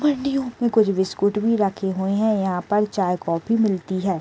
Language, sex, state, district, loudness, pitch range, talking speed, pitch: Hindi, female, Uttar Pradesh, Deoria, -21 LUFS, 190-225 Hz, 200 wpm, 200 Hz